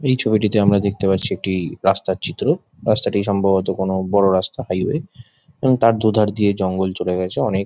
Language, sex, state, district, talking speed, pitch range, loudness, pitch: Bengali, male, West Bengal, Jhargram, 190 wpm, 95-110 Hz, -19 LUFS, 100 Hz